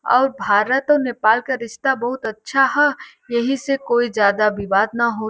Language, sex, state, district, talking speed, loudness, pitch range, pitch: Bhojpuri, female, Uttar Pradesh, Varanasi, 180 wpm, -18 LUFS, 220-270 Hz, 240 Hz